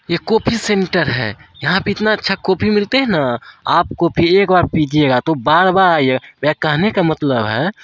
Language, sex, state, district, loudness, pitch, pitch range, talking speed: Hindi, male, Bihar, Saharsa, -15 LUFS, 175 Hz, 150-200 Hz, 200 wpm